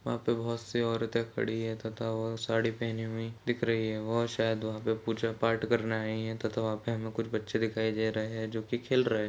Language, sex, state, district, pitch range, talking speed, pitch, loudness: Hindi, male, Chhattisgarh, Raigarh, 110-115 Hz, 245 wpm, 115 Hz, -32 LUFS